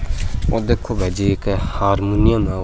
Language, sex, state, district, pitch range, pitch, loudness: Rajasthani, male, Rajasthan, Churu, 95-105 Hz, 100 Hz, -19 LUFS